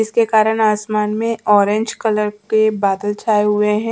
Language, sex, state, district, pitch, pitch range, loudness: Hindi, female, Bihar, Kaimur, 215 Hz, 210-220 Hz, -16 LUFS